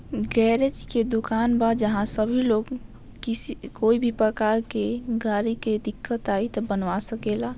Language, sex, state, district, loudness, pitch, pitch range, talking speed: Bhojpuri, female, Bihar, Saran, -24 LUFS, 225 Hz, 215-235 Hz, 150 wpm